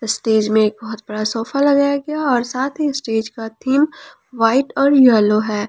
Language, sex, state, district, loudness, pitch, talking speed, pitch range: Hindi, female, Jharkhand, Palamu, -17 LUFS, 235 Hz, 190 wpm, 220-275 Hz